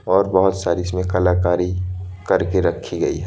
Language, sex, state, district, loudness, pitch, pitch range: Hindi, male, Madhya Pradesh, Bhopal, -19 LUFS, 90 Hz, 90-95 Hz